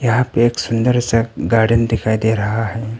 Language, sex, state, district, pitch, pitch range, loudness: Hindi, male, Arunachal Pradesh, Papum Pare, 115 Hz, 110-120 Hz, -16 LUFS